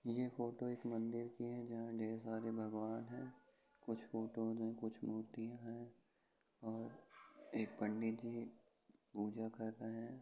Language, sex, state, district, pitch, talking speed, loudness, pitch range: Hindi, male, Uttar Pradesh, Ghazipur, 115 Hz, 145 wpm, -46 LUFS, 110-120 Hz